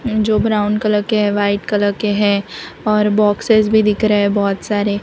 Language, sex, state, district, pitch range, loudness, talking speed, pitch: Hindi, female, Gujarat, Valsad, 205-215 Hz, -15 LUFS, 215 wpm, 210 Hz